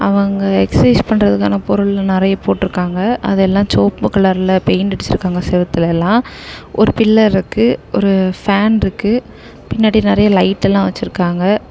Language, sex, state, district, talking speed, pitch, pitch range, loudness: Tamil, female, Tamil Nadu, Kanyakumari, 130 wpm, 190 Hz, 180-205 Hz, -13 LUFS